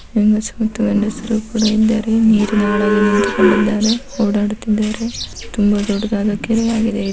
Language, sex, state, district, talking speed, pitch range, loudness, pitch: Kannada, female, Karnataka, Mysore, 110 wpm, 210-225 Hz, -16 LUFS, 215 Hz